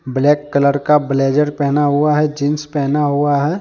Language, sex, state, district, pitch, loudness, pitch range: Hindi, male, Jharkhand, Deoghar, 145 Hz, -15 LUFS, 140-150 Hz